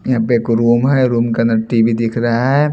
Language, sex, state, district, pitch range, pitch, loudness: Hindi, male, Haryana, Jhajjar, 115-125 Hz, 115 Hz, -14 LUFS